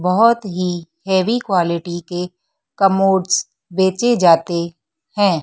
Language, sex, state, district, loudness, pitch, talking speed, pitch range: Hindi, female, Madhya Pradesh, Dhar, -17 LUFS, 185 Hz, 100 wpm, 175-195 Hz